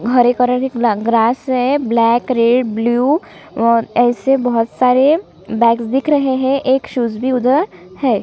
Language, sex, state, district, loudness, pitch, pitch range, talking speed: Hindi, female, Chhattisgarh, Kabirdham, -15 LUFS, 245 Hz, 230-265 Hz, 170 wpm